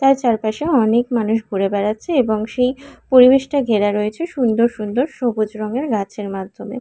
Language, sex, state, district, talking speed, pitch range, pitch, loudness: Bengali, female, Karnataka, Bangalore, 150 wpm, 215-260 Hz, 230 Hz, -18 LUFS